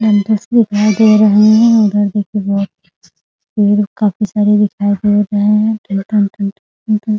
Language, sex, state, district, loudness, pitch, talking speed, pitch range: Hindi, female, Bihar, Muzaffarpur, -12 LUFS, 210 Hz, 125 wpm, 205-215 Hz